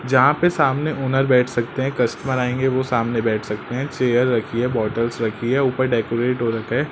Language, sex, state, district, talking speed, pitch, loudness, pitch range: Hindi, male, Madhya Pradesh, Katni, 215 wpm, 125 Hz, -20 LUFS, 115-130 Hz